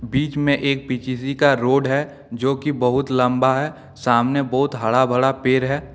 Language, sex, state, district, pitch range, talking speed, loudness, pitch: Hindi, male, Jharkhand, Deoghar, 130-140 Hz, 170 wpm, -19 LUFS, 130 Hz